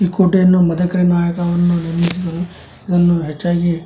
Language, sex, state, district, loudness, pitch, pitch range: Kannada, male, Karnataka, Dharwad, -15 LUFS, 175 Hz, 170-180 Hz